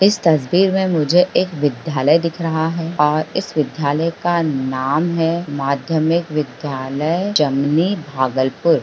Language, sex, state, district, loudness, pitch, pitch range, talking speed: Hindi, female, Bihar, Bhagalpur, -18 LUFS, 160 Hz, 145-170 Hz, 130 wpm